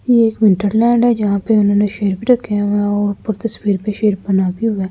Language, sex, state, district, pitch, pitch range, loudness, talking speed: Hindi, female, Delhi, New Delhi, 205 Hz, 200-225 Hz, -15 LUFS, 280 wpm